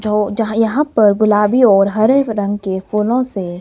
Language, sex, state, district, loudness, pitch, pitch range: Hindi, female, Himachal Pradesh, Shimla, -14 LUFS, 210 Hz, 205-225 Hz